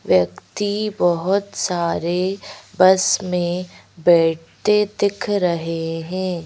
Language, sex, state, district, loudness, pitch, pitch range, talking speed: Hindi, female, Madhya Pradesh, Bhopal, -19 LUFS, 180 Hz, 170-200 Hz, 85 wpm